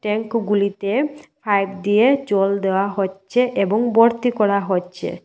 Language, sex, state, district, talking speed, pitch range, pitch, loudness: Bengali, female, Tripura, West Tripura, 115 wpm, 195-230 Hz, 205 Hz, -19 LUFS